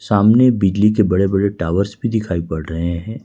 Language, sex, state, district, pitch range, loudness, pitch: Hindi, male, Jharkhand, Ranchi, 85-110 Hz, -16 LUFS, 100 Hz